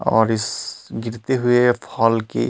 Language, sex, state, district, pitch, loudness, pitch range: Chhattisgarhi, male, Chhattisgarh, Rajnandgaon, 115 Hz, -20 LUFS, 110-120 Hz